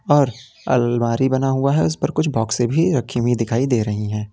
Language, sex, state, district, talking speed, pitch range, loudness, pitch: Hindi, male, Uttar Pradesh, Lalitpur, 220 wpm, 115-135 Hz, -19 LUFS, 120 Hz